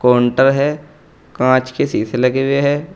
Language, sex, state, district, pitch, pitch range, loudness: Hindi, male, Uttar Pradesh, Saharanpur, 135 Hz, 125-145 Hz, -15 LUFS